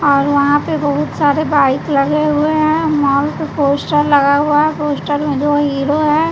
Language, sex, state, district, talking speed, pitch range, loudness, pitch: Hindi, female, Bihar, West Champaran, 180 wpm, 285-300 Hz, -14 LUFS, 290 Hz